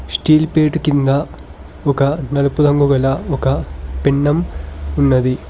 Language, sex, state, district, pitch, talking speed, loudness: Telugu, male, Telangana, Hyderabad, 140 Hz, 110 wpm, -16 LUFS